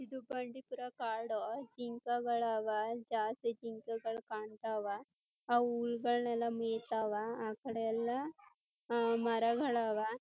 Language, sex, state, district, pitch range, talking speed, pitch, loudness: Kannada, female, Karnataka, Chamarajanagar, 225-240 Hz, 100 wpm, 230 Hz, -38 LUFS